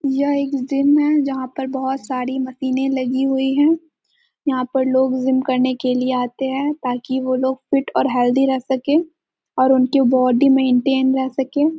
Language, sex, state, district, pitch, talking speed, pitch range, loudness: Hindi, female, Bihar, Jamui, 265 Hz, 185 wpm, 260-275 Hz, -18 LUFS